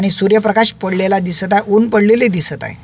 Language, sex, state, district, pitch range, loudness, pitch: Marathi, male, Maharashtra, Solapur, 190-215 Hz, -13 LUFS, 200 Hz